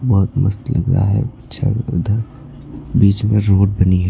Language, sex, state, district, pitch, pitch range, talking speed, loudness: Hindi, male, Uttar Pradesh, Lucknow, 105 Hz, 100-130 Hz, 175 wpm, -16 LUFS